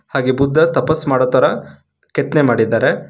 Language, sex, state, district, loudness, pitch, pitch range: Kannada, male, Karnataka, Bangalore, -15 LUFS, 130 Hz, 125-155 Hz